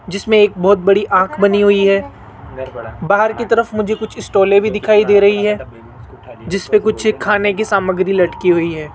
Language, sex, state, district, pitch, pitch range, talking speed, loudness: Hindi, male, Rajasthan, Jaipur, 200 Hz, 170-210 Hz, 180 wpm, -14 LUFS